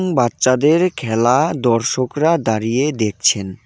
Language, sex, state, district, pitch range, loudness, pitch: Bengali, male, West Bengal, Cooch Behar, 115-150 Hz, -16 LUFS, 130 Hz